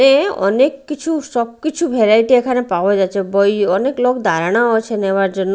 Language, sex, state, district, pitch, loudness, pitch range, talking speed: Bengali, female, Odisha, Malkangiri, 230 Hz, -15 LUFS, 200-265 Hz, 160 wpm